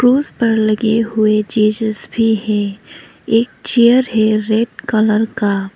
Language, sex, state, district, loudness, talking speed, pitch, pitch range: Hindi, female, Arunachal Pradesh, Papum Pare, -15 LUFS, 135 wpm, 220 Hz, 215-225 Hz